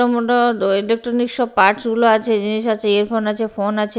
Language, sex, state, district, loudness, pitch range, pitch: Bengali, female, Bihar, Katihar, -17 LUFS, 210-240 Hz, 225 Hz